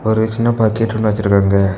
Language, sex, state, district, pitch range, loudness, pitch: Tamil, male, Tamil Nadu, Kanyakumari, 100-110 Hz, -15 LUFS, 110 Hz